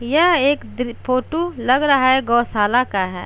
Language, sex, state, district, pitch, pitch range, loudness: Hindi, female, Uttar Pradesh, Jalaun, 255 Hz, 235-285 Hz, -17 LUFS